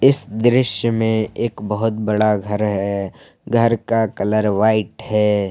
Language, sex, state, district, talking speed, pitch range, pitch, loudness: Hindi, male, Jharkhand, Palamu, 140 wpm, 105-115 Hz, 110 Hz, -18 LUFS